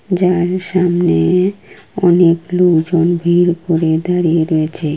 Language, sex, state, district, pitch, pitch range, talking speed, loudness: Bengali, female, West Bengal, Kolkata, 175 Hz, 165-180 Hz, 95 wpm, -14 LUFS